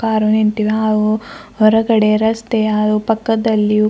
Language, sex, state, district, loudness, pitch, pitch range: Kannada, female, Karnataka, Bidar, -15 LUFS, 215 Hz, 215-225 Hz